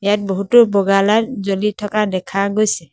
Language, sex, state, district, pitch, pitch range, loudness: Assamese, male, Assam, Sonitpur, 200 Hz, 195-215 Hz, -16 LUFS